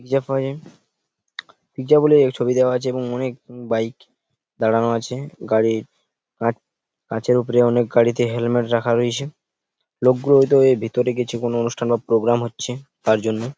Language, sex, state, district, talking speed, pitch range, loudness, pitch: Bengali, male, West Bengal, Purulia, 155 wpm, 115-130 Hz, -19 LUFS, 120 Hz